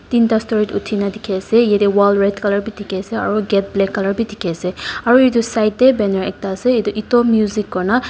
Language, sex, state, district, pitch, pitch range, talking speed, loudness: Nagamese, female, Nagaland, Dimapur, 210 Hz, 200-230 Hz, 235 wpm, -16 LUFS